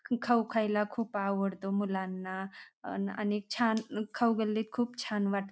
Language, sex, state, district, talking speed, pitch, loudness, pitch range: Marathi, female, Maharashtra, Pune, 130 wpm, 210 Hz, -32 LUFS, 195-230 Hz